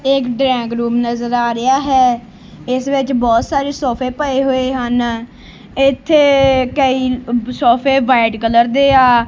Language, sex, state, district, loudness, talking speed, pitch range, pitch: Punjabi, female, Punjab, Kapurthala, -14 LUFS, 140 wpm, 235-270 Hz, 255 Hz